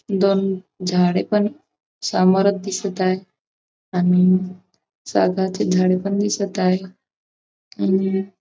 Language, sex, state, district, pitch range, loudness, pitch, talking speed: Marathi, female, Maharashtra, Dhule, 185-195 Hz, -20 LUFS, 190 Hz, 100 wpm